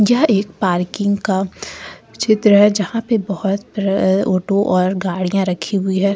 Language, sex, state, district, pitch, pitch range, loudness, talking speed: Hindi, female, Jharkhand, Deoghar, 195 Hz, 190-205 Hz, -17 LUFS, 155 wpm